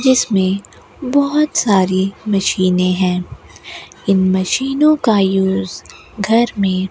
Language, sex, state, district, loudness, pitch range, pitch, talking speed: Hindi, female, Rajasthan, Bikaner, -15 LUFS, 185-250 Hz, 195 Hz, 95 wpm